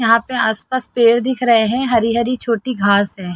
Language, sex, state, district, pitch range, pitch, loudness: Hindi, female, Chhattisgarh, Sarguja, 220-250 Hz, 230 Hz, -15 LUFS